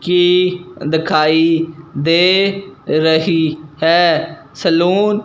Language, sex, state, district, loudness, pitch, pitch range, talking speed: Hindi, male, Punjab, Fazilka, -14 LUFS, 165 Hz, 160-180 Hz, 80 wpm